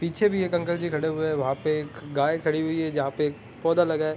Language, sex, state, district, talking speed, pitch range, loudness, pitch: Hindi, male, Jharkhand, Sahebganj, 300 wpm, 150-165 Hz, -26 LUFS, 155 Hz